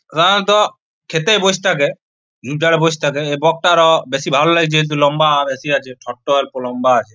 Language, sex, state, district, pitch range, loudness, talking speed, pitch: Bengali, male, West Bengal, Purulia, 140-170 Hz, -14 LUFS, 195 wpm, 155 Hz